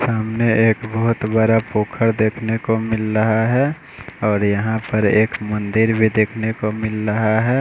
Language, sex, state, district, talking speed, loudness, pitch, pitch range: Hindi, male, Bihar, West Champaran, 165 wpm, -18 LUFS, 110 Hz, 110-115 Hz